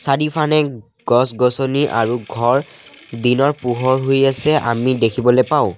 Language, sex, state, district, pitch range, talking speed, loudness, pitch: Assamese, male, Assam, Sonitpur, 120-140 Hz, 115 wpm, -16 LUFS, 130 Hz